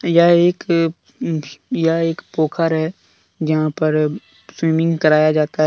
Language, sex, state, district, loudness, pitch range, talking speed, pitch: Hindi, male, Jharkhand, Deoghar, -18 LUFS, 155-165 Hz, 125 wpm, 160 Hz